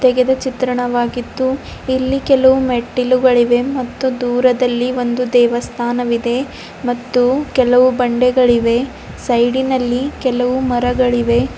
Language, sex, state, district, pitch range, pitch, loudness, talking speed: Kannada, female, Karnataka, Bidar, 245-260 Hz, 250 Hz, -15 LUFS, 85 wpm